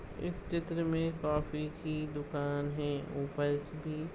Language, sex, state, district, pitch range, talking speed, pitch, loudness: Hindi, male, Goa, North and South Goa, 145-160 Hz, 130 wpm, 150 Hz, -36 LUFS